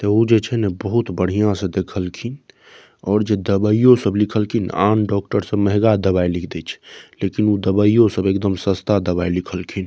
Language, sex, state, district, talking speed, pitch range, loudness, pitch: Maithili, male, Bihar, Saharsa, 195 wpm, 95-105 Hz, -18 LUFS, 100 Hz